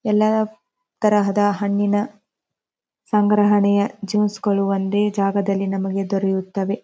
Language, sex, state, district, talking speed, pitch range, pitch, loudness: Kannada, female, Karnataka, Dharwad, 90 wpm, 195-210 Hz, 205 Hz, -20 LUFS